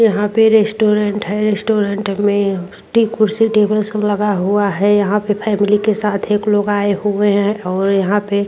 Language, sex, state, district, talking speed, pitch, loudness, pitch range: Hindi, female, Uttar Pradesh, Jyotiba Phule Nagar, 200 wpm, 205 Hz, -15 LUFS, 205-210 Hz